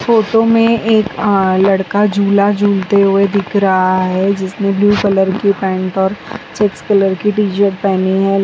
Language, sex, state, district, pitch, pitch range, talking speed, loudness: Hindi, female, Bihar, West Champaran, 200 Hz, 190-205 Hz, 165 wpm, -13 LUFS